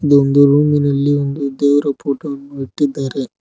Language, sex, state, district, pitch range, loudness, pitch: Kannada, male, Karnataka, Koppal, 140-145 Hz, -15 LUFS, 140 Hz